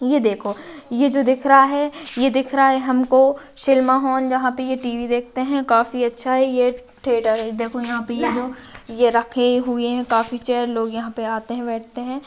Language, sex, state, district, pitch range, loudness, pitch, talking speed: Hindi, female, Rajasthan, Nagaur, 235-265 Hz, -19 LUFS, 250 Hz, 220 wpm